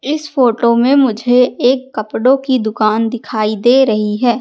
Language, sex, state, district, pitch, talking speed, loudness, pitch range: Hindi, female, Madhya Pradesh, Katni, 245 Hz, 165 wpm, -13 LUFS, 220-260 Hz